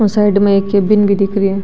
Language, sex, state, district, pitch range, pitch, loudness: Marwari, female, Rajasthan, Nagaur, 195-205 Hz, 200 Hz, -12 LUFS